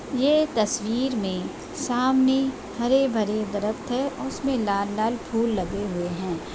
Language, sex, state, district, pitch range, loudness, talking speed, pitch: Hindi, female, Bihar, Saharsa, 205-265 Hz, -25 LUFS, 130 wpm, 230 Hz